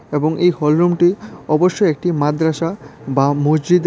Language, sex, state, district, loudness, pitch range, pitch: Bengali, male, Tripura, West Tripura, -16 LUFS, 150-175 Hz, 160 Hz